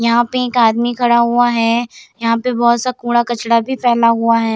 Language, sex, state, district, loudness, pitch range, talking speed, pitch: Hindi, female, Bihar, Samastipur, -14 LUFS, 230-240 Hz, 210 wpm, 235 Hz